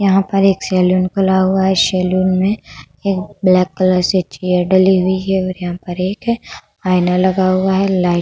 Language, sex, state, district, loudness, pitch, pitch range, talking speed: Hindi, female, Uttar Pradesh, Budaun, -15 LUFS, 185 Hz, 185-190 Hz, 195 wpm